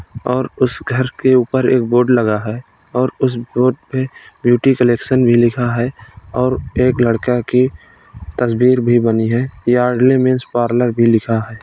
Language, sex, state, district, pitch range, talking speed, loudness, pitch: Hindi, male, Uttar Pradesh, Gorakhpur, 120-130 Hz, 165 wpm, -15 LUFS, 125 Hz